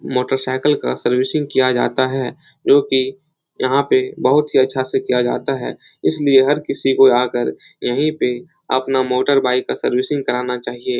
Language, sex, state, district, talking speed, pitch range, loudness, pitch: Hindi, male, Uttar Pradesh, Etah, 170 wpm, 125-145 Hz, -17 LUFS, 130 Hz